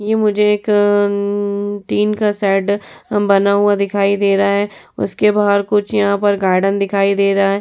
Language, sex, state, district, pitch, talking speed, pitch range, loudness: Hindi, female, Uttar Pradesh, Etah, 205 Hz, 195 wpm, 200-205 Hz, -15 LUFS